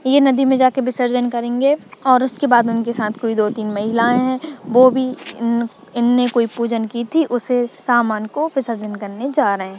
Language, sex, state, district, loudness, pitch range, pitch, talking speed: Hindi, female, Chhattisgarh, Sukma, -17 LUFS, 230-260 Hz, 240 Hz, 185 wpm